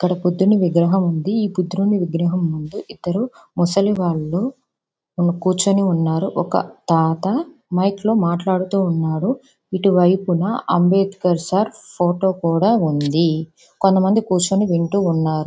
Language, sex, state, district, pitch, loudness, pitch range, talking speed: Telugu, female, Andhra Pradesh, Visakhapatnam, 185 Hz, -18 LUFS, 170-195 Hz, 105 wpm